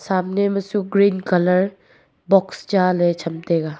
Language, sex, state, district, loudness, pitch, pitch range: Wancho, female, Arunachal Pradesh, Longding, -19 LUFS, 185 Hz, 175-195 Hz